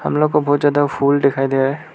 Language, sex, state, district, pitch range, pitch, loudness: Hindi, male, Arunachal Pradesh, Lower Dibang Valley, 140-150 Hz, 145 Hz, -16 LUFS